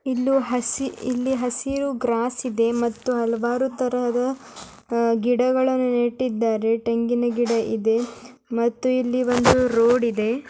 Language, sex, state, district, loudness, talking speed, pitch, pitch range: Kannada, male, Karnataka, Dharwad, -22 LUFS, 85 wpm, 245 Hz, 235-255 Hz